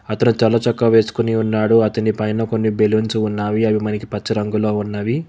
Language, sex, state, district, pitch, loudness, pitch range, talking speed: Telugu, male, Telangana, Hyderabad, 110 Hz, -18 LUFS, 105-115 Hz, 170 wpm